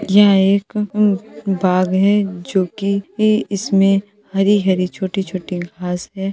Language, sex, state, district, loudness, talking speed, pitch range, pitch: Hindi, female, Uttar Pradesh, Jalaun, -17 LUFS, 125 wpm, 185-205 Hz, 195 Hz